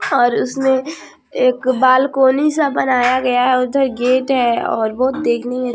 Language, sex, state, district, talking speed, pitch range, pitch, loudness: Hindi, female, Bihar, Vaishali, 165 wpm, 250-265 Hz, 255 Hz, -15 LUFS